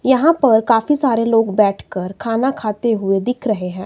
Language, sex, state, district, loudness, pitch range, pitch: Hindi, female, Himachal Pradesh, Shimla, -16 LUFS, 205-250 Hz, 225 Hz